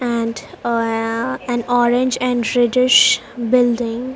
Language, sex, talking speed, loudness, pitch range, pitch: English, female, 115 wpm, -17 LUFS, 235-250 Hz, 240 Hz